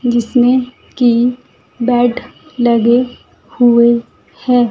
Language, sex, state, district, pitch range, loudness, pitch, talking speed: Hindi, female, Himachal Pradesh, Shimla, 235-250 Hz, -13 LUFS, 245 Hz, 75 wpm